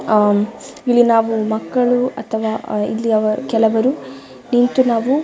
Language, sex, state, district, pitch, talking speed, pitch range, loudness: Kannada, female, Karnataka, Dakshina Kannada, 225 Hz, 105 wpm, 215-245 Hz, -17 LUFS